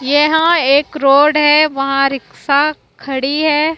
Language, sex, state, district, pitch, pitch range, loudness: Hindi, female, Maharashtra, Mumbai Suburban, 290 Hz, 275-305 Hz, -13 LUFS